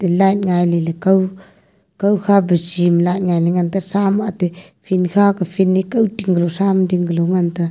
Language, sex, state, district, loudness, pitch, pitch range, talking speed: Wancho, female, Arunachal Pradesh, Longding, -16 LUFS, 185 Hz, 175-195 Hz, 195 wpm